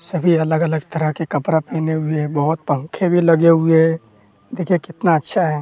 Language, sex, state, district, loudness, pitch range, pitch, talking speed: Hindi, male, Bihar, West Champaran, -17 LUFS, 155-170 Hz, 160 Hz, 205 wpm